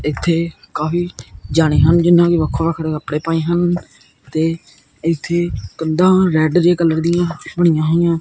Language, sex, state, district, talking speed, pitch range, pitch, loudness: Punjabi, male, Punjab, Kapurthala, 145 wpm, 155-170 Hz, 165 Hz, -16 LUFS